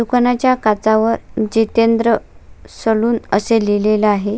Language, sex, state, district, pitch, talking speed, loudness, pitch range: Marathi, female, Maharashtra, Sindhudurg, 225 Hz, 95 wpm, -15 LUFS, 215-230 Hz